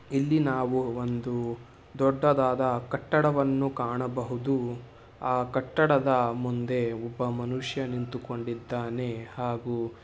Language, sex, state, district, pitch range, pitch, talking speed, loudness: Kannada, male, Karnataka, Shimoga, 120-135 Hz, 125 Hz, 80 wpm, -28 LUFS